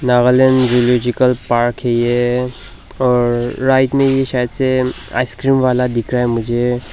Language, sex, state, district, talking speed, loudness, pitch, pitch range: Hindi, male, Nagaland, Dimapur, 145 wpm, -15 LUFS, 125 Hz, 120-130 Hz